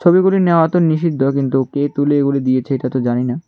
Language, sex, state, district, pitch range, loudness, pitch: Bengali, male, Tripura, West Tripura, 135-165 Hz, -16 LUFS, 140 Hz